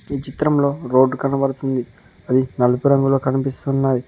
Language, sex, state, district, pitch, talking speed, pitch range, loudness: Telugu, male, Telangana, Mahabubabad, 135 Hz, 130 wpm, 130-140 Hz, -19 LUFS